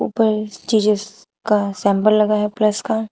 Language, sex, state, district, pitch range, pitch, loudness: Hindi, female, Uttar Pradesh, Shamli, 210-220 Hz, 215 Hz, -18 LUFS